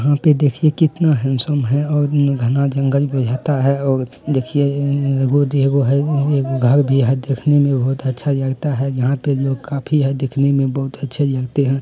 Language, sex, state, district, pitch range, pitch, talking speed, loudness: Hindi, male, Bihar, Bhagalpur, 135-145 Hz, 140 Hz, 205 wpm, -17 LUFS